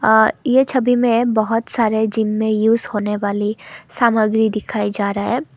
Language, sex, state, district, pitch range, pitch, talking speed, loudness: Hindi, female, Assam, Kamrup Metropolitan, 210-230 Hz, 220 Hz, 170 wpm, -17 LUFS